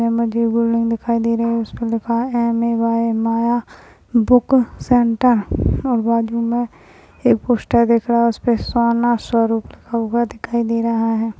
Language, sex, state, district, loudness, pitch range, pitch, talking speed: Hindi, female, Maharashtra, Aurangabad, -18 LUFS, 230-235 Hz, 230 Hz, 155 wpm